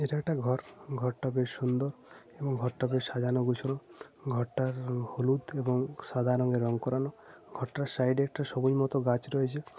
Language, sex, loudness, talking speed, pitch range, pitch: Bengali, male, -32 LUFS, 210 wpm, 125-135 Hz, 130 Hz